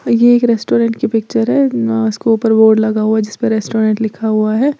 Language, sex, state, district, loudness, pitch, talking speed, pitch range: Hindi, female, Uttar Pradesh, Lalitpur, -13 LUFS, 225 Hz, 250 wpm, 220-235 Hz